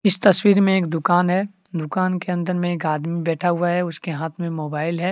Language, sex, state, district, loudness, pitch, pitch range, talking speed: Hindi, male, Jharkhand, Deoghar, -21 LUFS, 175 Hz, 165-185 Hz, 235 wpm